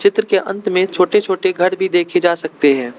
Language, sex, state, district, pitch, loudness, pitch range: Hindi, male, Arunachal Pradesh, Lower Dibang Valley, 180 Hz, -16 LUFS, 170-190 Hz